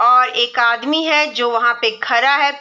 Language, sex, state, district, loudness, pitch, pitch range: Hindi, female, Bihar, Sitamarhi, -15 LUFS, 280 Hz, 240-300 Hz